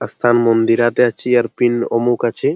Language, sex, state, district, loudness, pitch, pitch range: Bengali, male, West Bengal, Jalpaiguri, -15 LUFS, 120 Hz, 115-120 Hz